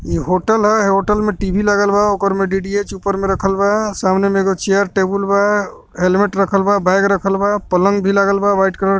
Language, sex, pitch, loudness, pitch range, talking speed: Bhojpuri, male, 200 Hz, -15 LUFS, 195-205 Hz, 235 wpm